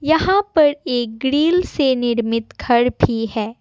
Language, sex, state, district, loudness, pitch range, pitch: Hindi, female, Assam, Kamrup Metropolitan, -18 LUFS, 235-310 Hz, 255 Hz